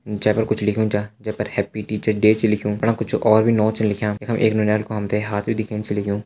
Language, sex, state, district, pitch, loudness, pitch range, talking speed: Hindi, male, Uttarakhand, Uttarkashi, 105 Hz, -20 LUFS, 105-110 Hz, 285 wpm